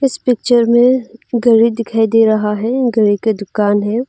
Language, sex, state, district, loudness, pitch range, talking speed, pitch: Hindi, female, Arunachal Pradesh, Longding, -13 LUFS, 215-240 Hz, 160 wpm, 230 Hz